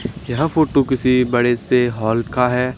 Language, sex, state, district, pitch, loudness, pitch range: Hindi, male, Haryana, Charkhi Dadri, 125 Hz, -17 LUFS, 120-130 Hz